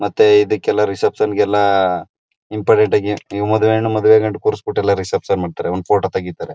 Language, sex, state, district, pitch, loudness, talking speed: Kannada, male, Karnataka, Mysore, 110 Hz, -16 LUFS, 155 wpm